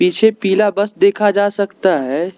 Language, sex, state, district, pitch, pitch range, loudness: Hindi, male, Arunachal Pradesh, Lower Dibang Valley, 200 Hz, 190-205 Hz, -15 LUFS